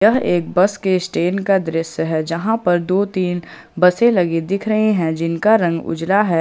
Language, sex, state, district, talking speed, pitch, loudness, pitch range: Hindi, male, Jharkhand, Ranchi, 195 wpm, 180 Hz, -17 LUFS, 165-200 Hz